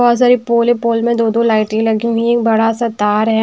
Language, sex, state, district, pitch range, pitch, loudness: Hindi, female, Himachal Pradesh, Shimla, 220-235 Hz, 230 Hz, -14 LUFS